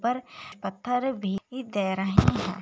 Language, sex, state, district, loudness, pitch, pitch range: Hindi, female, Chhattisgarh, Raigarh, -27 LUFS, 240 Hz, 195-255 Hz